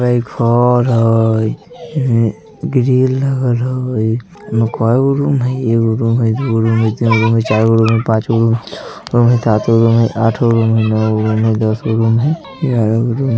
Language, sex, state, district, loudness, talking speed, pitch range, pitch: Bajjika, male, Bihar, Vaishali, -14 LUFS, 220 wpm, 110-125 Hz, 115 Hz